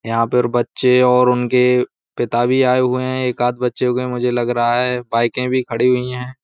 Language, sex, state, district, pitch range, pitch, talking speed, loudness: Hindi, male, Uttar Pradesh, Budaun, 120-125 Hz, 125 Hz, 205 wpm, -17 LUFS